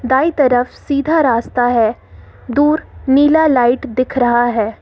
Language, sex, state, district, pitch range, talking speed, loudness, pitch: Hindi, female, Jharkhand, Ranchi, 240-285 Hz, 135 wpm, -14 LUFS, 260 Hz